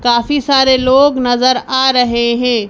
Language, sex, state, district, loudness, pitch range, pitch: Hindi, male, Madhya Pradesh, Bhopal, -12 LUFS, 240-265 Hz, 255 Hz